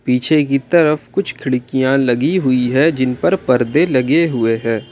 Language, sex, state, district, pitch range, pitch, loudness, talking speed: Hindi, male, Jharkhand, Ranchi, 125-155 Hz, 130 Hz, -15 LUFS, 170 wpm